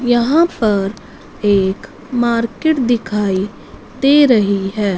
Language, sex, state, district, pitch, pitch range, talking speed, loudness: Hindi, female, Punjab, Fazilka, 230 Hz, 200-250 Hz, 95 wpm, -15 LUFS